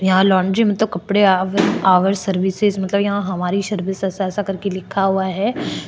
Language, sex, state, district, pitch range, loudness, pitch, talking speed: Hindi, female, Maharashtra, Chandrapur, 190-200 Hz, -18 LUFS, 195 Hz, 165 wpm